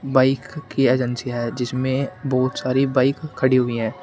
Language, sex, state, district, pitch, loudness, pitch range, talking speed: Hindi, male, Uttar Pradesh, Shamli, 130 Hz, -21 LUFS, 125-135 Hz, 165 wpm